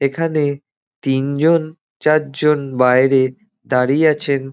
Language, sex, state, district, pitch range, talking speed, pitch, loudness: Bengali, male, West Bengal, Dakshin Dinajpur, 135-155 Hz, 80 wpm, 140 Hz, -17 LUFS